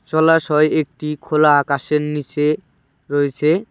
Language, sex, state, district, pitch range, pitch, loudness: Bengali, male, West Bengal, Cooch Behar, 145-155 Hz, 150 Hz, -17 LUFS